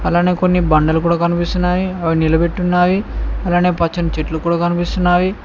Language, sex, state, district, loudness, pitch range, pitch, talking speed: Telugu, male, Telangana, Mahabubabad, -16 LUFS, 170-180 Hz, 175 Hz, 130 wpm